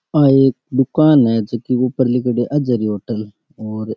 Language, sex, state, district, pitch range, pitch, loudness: Rajasthani, male, Rajasthan, Nagaur, 110-135 Hz, 125 Hz, -16 LUFS